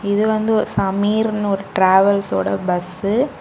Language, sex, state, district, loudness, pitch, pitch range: Tamil, female, Tamil Nadu, Kanyakumari, -17 LUFS, 200 Hz, 190-215 Hz